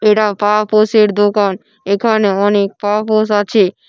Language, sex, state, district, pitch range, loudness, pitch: Bengali, female, West Bengal, Paschim Medinipur, 205-215 Hz, -13 LUFS, 210 Hz